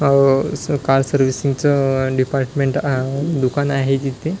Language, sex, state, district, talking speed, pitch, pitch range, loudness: Marathi, male, Maharashtra, Washim, 165 wpm, 135 Hz, 135-145 Hz, -18 LUFS